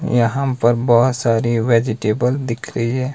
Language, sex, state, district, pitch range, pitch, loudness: Hindi, male, Himachal Pradesh, Shimla, 115-130 Hz, 120 Hz, -17 LUFS